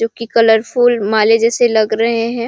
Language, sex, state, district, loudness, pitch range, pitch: Hindi, female, Chhattisgarh, Sarguja, -13 LUFS, 220-235 Hz, 230 Hz